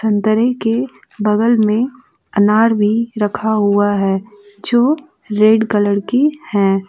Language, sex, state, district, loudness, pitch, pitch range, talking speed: Hindi, female, Jharkhand, Deoghar, -15 LUFS, 215 Hz, 205-235 Hz, 120 wpm